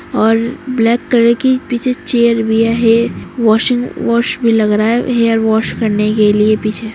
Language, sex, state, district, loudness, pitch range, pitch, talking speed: Hindi, female, Uttar Pradesh, Muzaffarnagar, -13 LUFS, 220-240 Hz, 230 Hz, 180 wpm